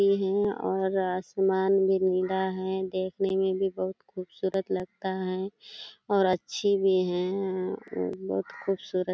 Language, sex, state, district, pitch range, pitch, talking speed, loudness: Hindi, female, Bihar, Kishanganj, 185-195 Hz, 190 Hz, 145 wpm, -28 LUFS